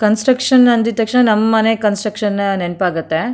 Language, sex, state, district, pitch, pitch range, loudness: Kannada, female, Karnataka, Mysore, 215 Hz, 200-235 Hz, -14 LUFS